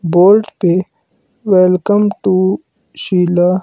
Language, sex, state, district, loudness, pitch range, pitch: Hindi, male, Himachal Pradesh, Shimla, -13 LUFS, 180-205 Hz, 185 Hz